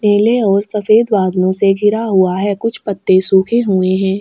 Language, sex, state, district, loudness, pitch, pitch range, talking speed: Hindi, female, Chhattisgarh, Sukma, -13 LUFS, 200 Hz, 190-215 Hz, 185 wpm